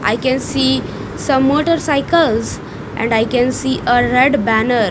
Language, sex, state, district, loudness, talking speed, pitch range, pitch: English, female, Punjab, Kapurthala, -15 LUFS, 145 wpm, 235-280 Hz, 260 Hz